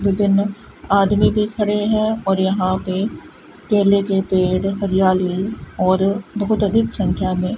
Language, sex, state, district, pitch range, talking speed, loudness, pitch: Hindi, female, Rajasthan, Bikaner, 190-210 Hz, 140 wpm, -18 LUFS, 195 Hz